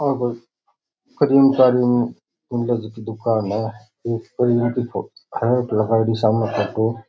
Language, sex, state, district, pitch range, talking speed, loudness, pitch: Rajasthani, male, Rajasthan, Churu, 110-125 Hz, 40 wpm, -20 LUFS, 115 Hz